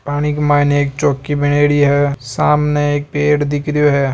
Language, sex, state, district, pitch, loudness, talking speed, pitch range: Marwari, male, Rajasthan, Nagaur, 145 Hz, -15 LUFS, 190 wpm, 145-150 Hz